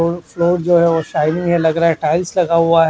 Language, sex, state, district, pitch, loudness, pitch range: Hindi, male, Haryana, Charkhi Dadri, 170 Hz, -15 LUFS, 165-175 Hz